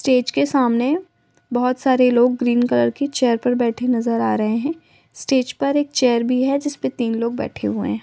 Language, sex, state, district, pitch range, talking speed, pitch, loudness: Hindi, female, Uttar Pradesh, Budaun, 240-275 Hz, 210 wpm, 250 Hz, -19 LUFS